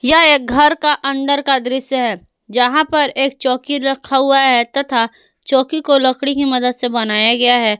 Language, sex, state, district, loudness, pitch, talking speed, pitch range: Hindi, female, Jharkhand, Garhwa, -14 LUFS, 270 Hz, 190 wpm, 245-280 Hz